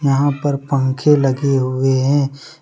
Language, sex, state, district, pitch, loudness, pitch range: Hindi, male, Jharkhand, Deoghar, 140 Hz, -16 LUFS, 135-145 Hz